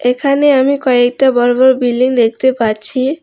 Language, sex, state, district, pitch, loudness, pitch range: Bengali, female, West Bengal, Alipurduar, 255 Hz, -12 LUFS, 245-265 Hz